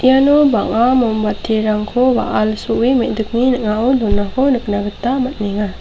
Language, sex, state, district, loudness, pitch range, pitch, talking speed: Garo, female, Meghalaya, South Garo Hills, -15 LUFS, 215-255 Hz, 235 Hz, 115 wpm